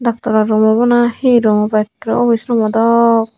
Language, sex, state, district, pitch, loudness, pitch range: Chakma, female, Tripura, Unakoti, 225 Hz, -13 LUFS, 215-240 Hz